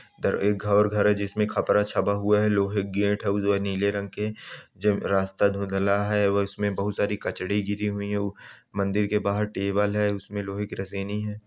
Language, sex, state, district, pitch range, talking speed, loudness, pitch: Angika, male, Bihar, Samastipur, 100-105 Hz, 195 wpm, -25 LUFS, 100 Hz